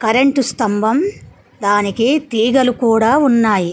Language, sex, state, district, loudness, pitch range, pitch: Telugu, female, Telangana, Mahabubabad, -15 LUFS, 220-265 Hz, 230 Hz